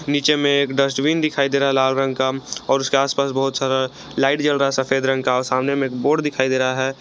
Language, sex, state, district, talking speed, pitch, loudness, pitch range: Hindi, male, Jharkhand, Garhwa, 275 wpm, 135 Hz, -19 LUFS, 130-140 Hz